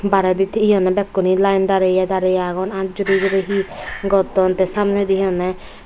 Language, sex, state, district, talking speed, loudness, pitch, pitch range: Chakma, female, Tripura, Unakoti, 165 wpm, -18 LUFS, 195 Hz, 185-195 Hz